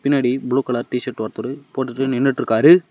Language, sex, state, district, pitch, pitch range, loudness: Tamil, male, Tamil Nadu, Namakkal, 130 Hz, 125-135 Hz, -19 LUFS